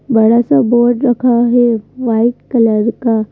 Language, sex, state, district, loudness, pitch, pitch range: Hindi, female, Madhya Pradesh, Bhopal, -12 LUFS, 240 Hz, 225-245 Hz